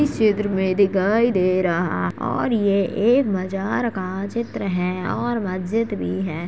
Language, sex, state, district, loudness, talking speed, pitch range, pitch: Hindi, male, Uttar Pradesh, Jalaun, -21 LUFS, 155 wpm, 185-225 Hz, 195 Hz